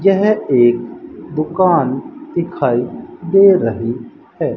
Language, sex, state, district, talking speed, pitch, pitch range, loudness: Hindi, male, Rajasthan, Bikaner, 90 wpm, 160 Hz, 120-195 Hz, -15 LUFS